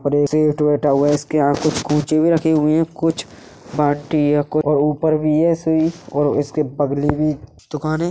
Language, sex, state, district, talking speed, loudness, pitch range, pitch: Hindi, male, Uttar Pradesh, Hamirpur, 155 wpm, -18 LUFS, 145-155 Hz, 150 Hz